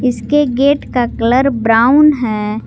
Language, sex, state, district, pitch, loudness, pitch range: Hindi, female, Jharkhand, Garhwa, 250 Hz, -12 LUFS, 230-280 Hz